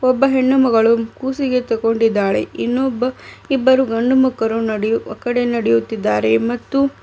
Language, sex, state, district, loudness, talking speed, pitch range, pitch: Kannada, female, Karnataka, Bidar, -17 LUFS, 110 wpm, 225-260 Hz, 245 Hz